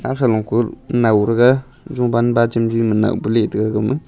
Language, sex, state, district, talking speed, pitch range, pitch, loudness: Wancho, male, Arunachal Pradesh, Longding, 175 wpm, 110-125 Hz, 115 Hz, -17 LUFS